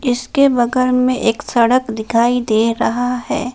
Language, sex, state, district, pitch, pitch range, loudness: Hindi, female, Jharkhand, Palamu, 245 Hz, 230-255 Hz, -15 LUFS